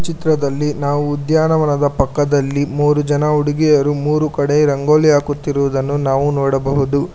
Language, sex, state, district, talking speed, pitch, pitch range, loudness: Kannada, male, Karnataka, Bangalore, 110 wpm, 145 Hz, 140-150 Hz, -16 LUFS